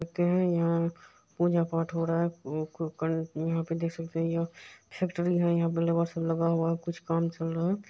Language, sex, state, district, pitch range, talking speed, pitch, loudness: Maithili, male, Bihar, Supaul, 165-170 Hz, 220 wpm, 165 Hz, -30 LUFS